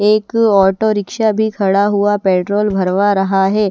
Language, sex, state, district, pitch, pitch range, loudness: Hindi, female, Bihar, West Champaran, 205 Hz, 195-215 Hz, -14 LUFS